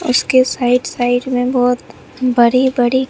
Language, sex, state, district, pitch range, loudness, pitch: Hindi, female, Bihar, Katihar, 245-255 Hz, -15 LUFS, 250 Hz